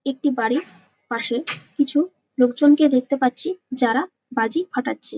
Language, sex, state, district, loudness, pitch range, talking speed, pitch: Bengali, female, West Bengal, Jalpaiguri, -21 LUFS, 245-295 Hz, 125 wpm, 275 Hz